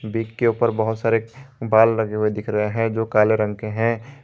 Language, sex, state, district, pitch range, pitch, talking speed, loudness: Hindi, male, Jharkhand, Garhwa, 110-115 Hz, 110 Hz, 200 wpm, -20 LUFS